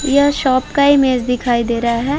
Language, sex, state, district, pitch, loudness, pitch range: Hindi, female, Uttar Pradesh, Varanasi, 260 Hz, -15 LUFS, 240-285 Hz